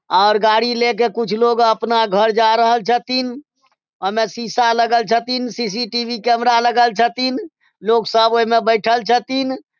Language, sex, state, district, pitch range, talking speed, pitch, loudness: Maithili, male, Bihar, Supaul, 225-240 Hz, 165 wpm, 235 Hz, -16 LUFS